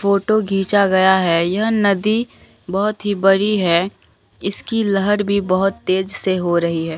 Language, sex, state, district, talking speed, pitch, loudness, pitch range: Hindi, male, Bihar, Katihar, 165 wpm, 195 Hz, -17 LUFS, 185-205 Hz